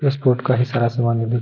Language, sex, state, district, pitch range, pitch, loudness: Hindi, male, Bihar, Gaya, 120-130 Hz, 120 Hz, -19 LUFS